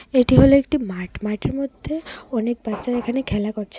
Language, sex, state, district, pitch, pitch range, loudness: Bengali, female, Tripura, West Tripura, 240 Hz, 210-270 Hz, -21 LUFS